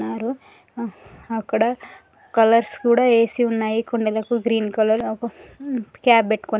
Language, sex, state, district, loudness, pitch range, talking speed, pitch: Telugu, female, Andhra Pradesh, Srikakulam, -20 LUFS, 220-240 Hz, 120 wpm, 230 Hz